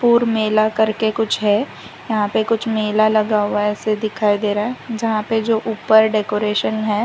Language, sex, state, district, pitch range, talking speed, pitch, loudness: Hindi, female, Gujarat, Valsad, 210-225 Hz, 195 wpm, 215 Hz, -18 LUFS